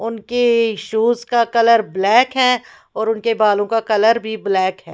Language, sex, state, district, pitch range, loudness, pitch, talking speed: Hindi, female, Bihar, West Champaran, 215-235 Hz, -16 LUFS, 225 Hz, 170 wpm